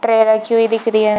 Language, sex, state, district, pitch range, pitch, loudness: Hindi, female, Bihar, Darbhanga, 220-225 Hz, 225 Hz, -14 LUFS